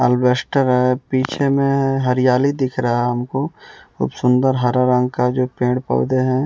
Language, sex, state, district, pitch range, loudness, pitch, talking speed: Hindi, male, Bihar, West Champaran, 125-130 Hz, -18 LUFS, 125 Hz, 160 wpm